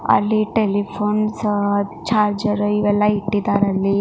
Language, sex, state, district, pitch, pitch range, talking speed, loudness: Kannada, female, Karnataka, Belgaum, 205 Hz, 200-210 Hz, 90 wpm, -19 LUFS